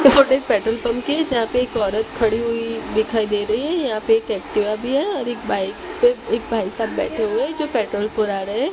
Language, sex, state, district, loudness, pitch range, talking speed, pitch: Hindi, female, Gujarat, Gandhinagar, -20 LUFS, 215-265 Hz, 220 wpm, 230 Hz